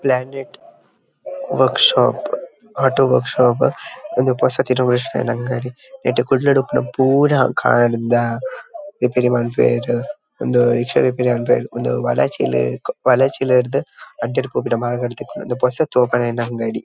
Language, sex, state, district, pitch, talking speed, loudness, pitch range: Tulu, male, Karnataka, Dakshina Kannada, 125 Hz, 125 wpm, -17 LUFS, 120-135 Hz